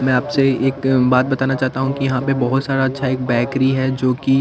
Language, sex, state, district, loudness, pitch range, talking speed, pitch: Hindi, male, Chandigarh, Chandigarh, -17 LUFS, 130-135 Hz, 230 wpm, 130 Hz